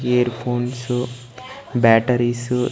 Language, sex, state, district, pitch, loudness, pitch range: Telugu, male, Andhra Pradesh, Sri Satya Sai, 125 Hz, -20 LUFS, 120-125 Hz